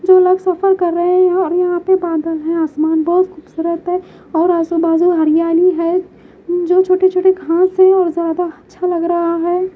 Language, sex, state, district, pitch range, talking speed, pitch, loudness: Hindi, female, Haryana, Jhajjar, 335-370 Hz, 195 wpm, 350 Hz, -14 LUFS